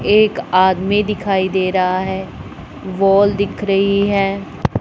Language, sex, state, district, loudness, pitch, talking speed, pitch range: Hindi, male, Punjab, Pathankot, -16 LUFS, 195 Hz, 125 wpm, 190-200 Hz